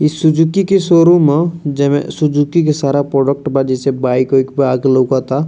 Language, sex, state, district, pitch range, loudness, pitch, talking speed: Bhojpuri, male, Bihar, East Champaran, 135-160 Hz, -13 LUFS, 145 Hz, 185 wpm